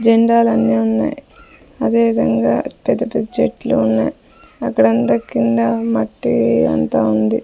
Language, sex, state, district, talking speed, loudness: Telugu, female, Andhra Pradesh, Sri Satya Sai, 95 wpm, -16 LUFS